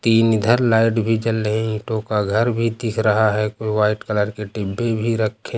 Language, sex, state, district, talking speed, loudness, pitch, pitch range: Hindi, male, Uttar Pradesh, Lucknow, 235 wpm, -19 LUFS, 110 Hz, 105-115 Hz